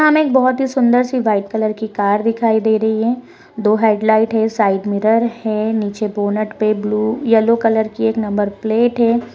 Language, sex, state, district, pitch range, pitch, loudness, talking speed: Hindi, female, Rajasthan, Churu, 215-230 Hz, 220 Hz, -16 LUFS, 180 wpm